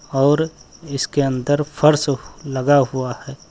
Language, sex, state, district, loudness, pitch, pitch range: Hindi, male, Uttar Pradesh, Lucknow, -19 LUFS, 140 Hz, 135-150 Hz